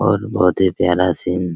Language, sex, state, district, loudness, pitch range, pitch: Hindi, male, Bihar, Araria, -17 LUFS, 90-95 Hz, 90 Hz